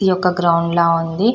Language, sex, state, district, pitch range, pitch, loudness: Telugu, female, Telangana, Karimnagar, 170-185 Hz, 175 Hz, -16 LUFS